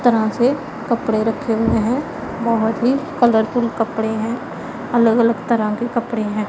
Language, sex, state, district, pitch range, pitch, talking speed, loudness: Hindi, female, Punjab, Pathankot, 220-245 Hz, 230 Hz, 165 wpm, -19 LUFS